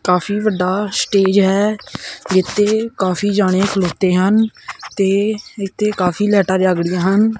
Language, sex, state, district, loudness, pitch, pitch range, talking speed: Punjabi, male, Punjab, Kapurthala, -16 LUFS, 195 Hz, 185-210 Hz, 130 wpm